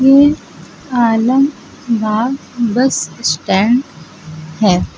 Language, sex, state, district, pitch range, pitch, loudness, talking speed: Hindi, female, Uttar Pradesh, Lucknow, 190-265 Hz, 230 Hz, -14 LUFS, 60 wpm